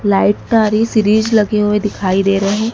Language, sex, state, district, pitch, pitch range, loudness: Hindi, female, Madhya Pradesh, Dhar, 210 Hz, 200-220 Hz, -14 LUFS